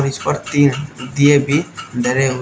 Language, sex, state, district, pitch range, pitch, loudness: Hindi, male, Uttar Pradesh, Shamli, 130-145 Hz, 140 Hz, -16 LUFS